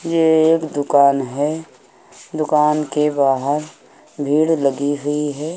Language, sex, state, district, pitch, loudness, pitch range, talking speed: Hindi, male, Uttar Pradesh, Hamirpur, 150 Hz, -17 LUFS, 145-155 Hz, 120 wpm